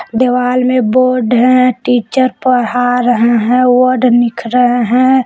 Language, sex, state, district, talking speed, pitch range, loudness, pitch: Hindi, female, Jharkhand, Palamu, 135 wpm, 245-255 Hz, -11 LUFS, 250 Hz